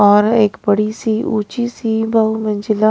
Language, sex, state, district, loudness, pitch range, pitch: Hindi, female, Punjab, Pathankot, -16 LUFS, 210-225 Hz, 215 Hz